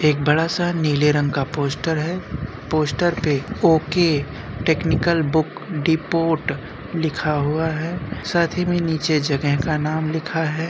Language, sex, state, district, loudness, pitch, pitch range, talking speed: Hindi, male, Uttar Pradesh, Jyotiba Phule Nagar, -21 LUFS, 155 Hz, 145-165 Hz, 145 wpm